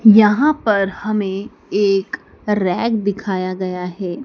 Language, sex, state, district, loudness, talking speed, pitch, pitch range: Hindi, female, Madhya Pradesh, Dhar, -18 LUFS, 115 wpm, 205 Hz, 190-215 Hz